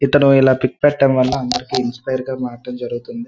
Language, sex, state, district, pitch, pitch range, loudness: Telugu, male, Andhra Pradesh, Srikakulam, 130 Hz, 125-140 Hz, -17 LUFS